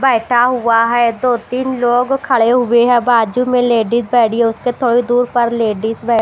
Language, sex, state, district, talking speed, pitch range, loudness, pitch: Hindi, female, Bihar, Katihar, 195 wpm, 230-250 Hz, -14 LUFS, 240 Hz